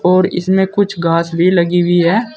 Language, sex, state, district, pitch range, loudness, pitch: Hindi, male, Uttar Pradesh, Saharanpur, 170-190 Hz, -13 LUFS, 180 Hz